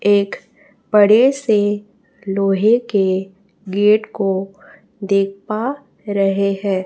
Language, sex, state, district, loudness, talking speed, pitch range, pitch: Hindi, female, Chhattisgarh, Raipur, -17 LUFS, 95 wpm, 195-215 Hz, 200 Hz